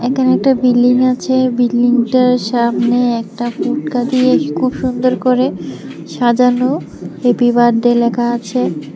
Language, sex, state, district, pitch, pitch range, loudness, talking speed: Bengali, female, Tripura, West Tripura, 245 Hz, 240-255 Hz, -14 LUFS, 115 wpm